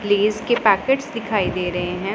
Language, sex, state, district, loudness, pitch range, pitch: Hindi, female, Punjab, Pathankot, -20 LUFS, 190-230 Hz, 205 Hz